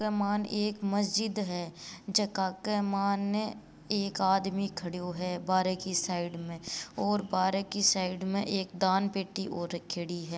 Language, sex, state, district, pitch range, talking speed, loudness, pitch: Marwari, female, Rajasthan, Nagaur, 180-200 Hz, 155 wpm, -31 LUFS, 190 Hz